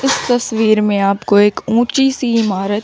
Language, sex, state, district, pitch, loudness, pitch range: Hindi, female, Chandigarh, Chandigarh, 220 Hz, -14 LUFS, 205-245 Hz